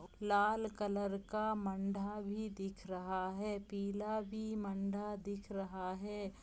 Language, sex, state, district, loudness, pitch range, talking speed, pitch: Hindi, female, Jharkhand, Jamtara, -40 LUFS, 195-210 Hz, 130 wpm, 200 Hz